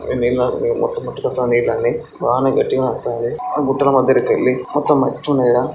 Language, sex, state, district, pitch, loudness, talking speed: Telugu, male, Andhra Pradesh, Srikakulam, 145 Hz, -17 LUFS, 155 wpm